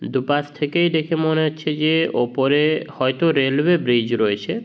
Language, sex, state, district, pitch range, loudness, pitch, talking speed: Bengali, male, West Bengal, Jhargram, 135-160 Hz, -19 LUFS, 150 Hz, 140 wpm